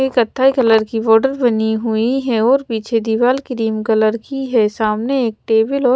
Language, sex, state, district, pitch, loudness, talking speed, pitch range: Hindi, female, Chandigarh, Chandigarh, 230 Hz, -16 LUFS, 190 wpm, 220-260 Hz